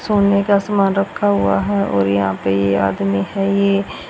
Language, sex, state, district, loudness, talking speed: Hindi, female, Haryana, Rohtak, -17 LUFS, 190 wpm